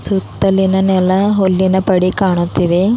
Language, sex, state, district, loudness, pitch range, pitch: Kannada, female, Karnataka, Bidar, -13 LUFS, 185-195 Hz, 190 Hz